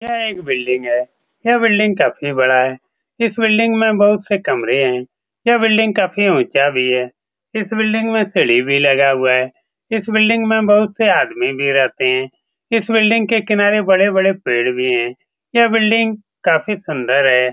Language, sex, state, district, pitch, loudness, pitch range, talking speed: Hindi, male, Bihar, Saran, 200 Hz, -15 LUFS, 130-220 Hz, 180 wpm